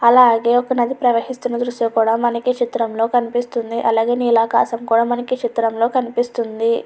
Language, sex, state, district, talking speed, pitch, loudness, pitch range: Telugu, female, Andhra Pradesh, Chittoor, 140 wpm, 235 Hz, -17 LUFS, 230-245 Hz